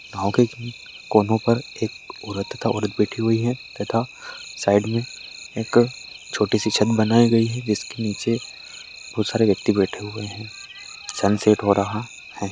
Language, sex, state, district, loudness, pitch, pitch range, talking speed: Hindi, male, Bihar, Lakhisarai, -22 LUFS, 110 Hz, 105-115 Hz, 155 wpm